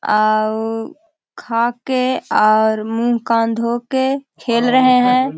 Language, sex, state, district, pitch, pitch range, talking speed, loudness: Hindi, female, Bihar, Jahanabad, 235 Hz, 225-260 Hz, 145 wpm, -16 LUFS